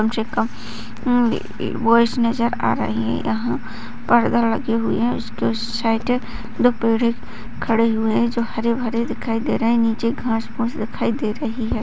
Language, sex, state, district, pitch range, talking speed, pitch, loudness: Hindi, female, Bihar, Kishanganj, 215-235 Hz, 155 wpm, 230 Hz, -20 LUFS